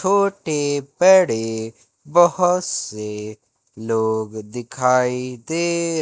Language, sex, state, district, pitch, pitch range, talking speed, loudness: Hindi, male, Madhya Pradesh, Katni, 125 Hz, 110-170 Hz, 70 wpm, -19 LUFS